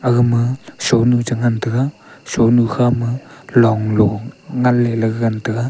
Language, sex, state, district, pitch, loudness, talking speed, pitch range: Wancho, male, Arunachal Pradesh, Longding, 120 Hz, -16 LUFS, 160 wpm, 115-125 Hz